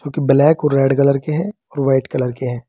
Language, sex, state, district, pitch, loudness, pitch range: Hindi, male, Uttar Pradesh, Saharanpur, 140 Hz, -16 LUFS, 135-150 Hz